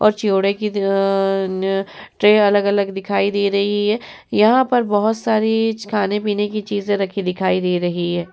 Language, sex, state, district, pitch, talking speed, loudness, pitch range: Hindi, female, Uttar Pradesh, Muzaffarnagar, 205 Hz, 150 wpm, -18 LUFS, 195-210 Hz